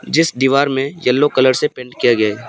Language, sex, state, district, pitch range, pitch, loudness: Hindi, male, Arunachal Pradesh, Papum Pare, 125-145 Hz, 130 Hz, -15 LUFS